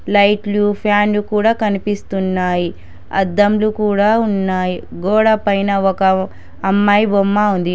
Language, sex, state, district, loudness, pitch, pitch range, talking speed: Telugu, female, Telangana, Hyderabad, -15 LUFS, 205 Hz, 195-210 Hz, 100 wpm